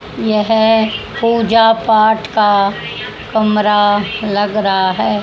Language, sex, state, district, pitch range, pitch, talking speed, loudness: Hindi, female, Haryana, Charkhi Dadri, 205-220 Hz, 215 Hz, 90 wpm, -13 LUFS